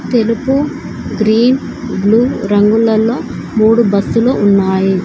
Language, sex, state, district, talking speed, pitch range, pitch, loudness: Telugu, female, Telangana, Komaram Bheem, 85 wpm, 205-240 Hz, 225 Hz, -13 LUFS